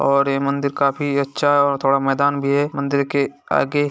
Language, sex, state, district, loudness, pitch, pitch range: Hindi, male, Bihar, Gaya, -19 LUFS, 140 Hz, 140-145 Hz